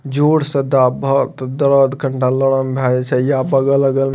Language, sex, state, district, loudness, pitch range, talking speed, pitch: Maithili, male, Bihar, Madhepura, -15 LUFS, 130-140 Hz, 190 wpm, 135 Hz